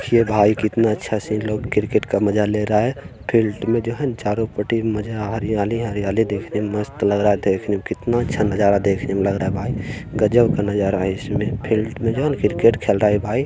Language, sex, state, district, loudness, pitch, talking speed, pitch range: Hindi, male, Bihar, Bhagalpur, -20 LUFS, 105 Hz, 240 wpm, 105-115 Hz